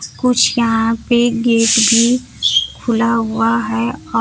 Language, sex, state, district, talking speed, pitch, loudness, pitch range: Hindi, female, Bihar, Kaimur, 130 wpm, 230 Hz, -14 LUFS, 225-235 Hz